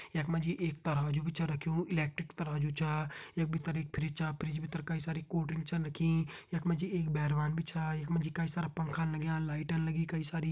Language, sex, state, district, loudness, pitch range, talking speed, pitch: Hindi, male, Uttarakhand, Uttarkashi, -35 LUFS, 155-165 Hz, 240 wpm, 160 Hz